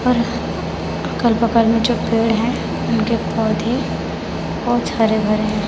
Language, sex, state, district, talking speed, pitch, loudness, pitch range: Hindi, female, Chhattisgarh, Raipur, 150 wpm, 230 Hz, -18 LUFS, 220-235 Hz